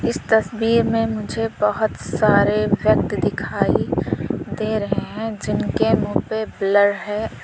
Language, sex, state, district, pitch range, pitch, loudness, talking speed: Hindi, female, Uttar Pradesh, Lalitpur, 205-220 Hz, 215 Hz, -20 LUFS, 130 wpm